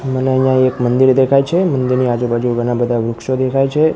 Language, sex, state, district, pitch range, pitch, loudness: Gujarati, male, Gujarat, Gandhinagar, 120-135 Hz, 130 Hz, -15 LUFS